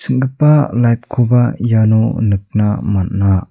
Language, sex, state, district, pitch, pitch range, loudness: Garo, male, Meghalaya, South Garo Hills, 115 Hz, 105-125 Hz, -14 LUFS